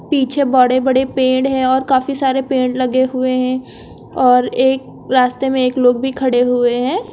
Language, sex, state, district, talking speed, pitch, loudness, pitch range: Hindi, female, Uttar Pradesh, Lucknow, 185 wpm, 260 Hz, -15 LUFS, 255-265 Hz